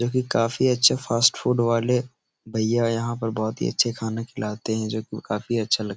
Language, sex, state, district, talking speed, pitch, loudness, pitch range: Hindi, male, Uttar Pradesh, Etah, 220 wpm, 115 Hz, -23 LUFS, 110-120 Hz